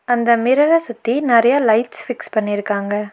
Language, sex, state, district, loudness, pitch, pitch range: Tamil, female, Tamil Nadu, Nilgiris, -16 LUFS, 235 Hz, 215-255 Hz